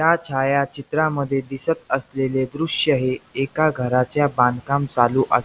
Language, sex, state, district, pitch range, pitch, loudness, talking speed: Marathi, male, Maharashtra, Pune, 130-145 Hz, 135 Hz, -21 LUFS, 130 wpm